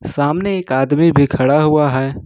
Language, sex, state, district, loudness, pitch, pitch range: Hindi, male, Jharkhand, Ranchi, -14 LUFS, 145 Hz, 135-160 Hz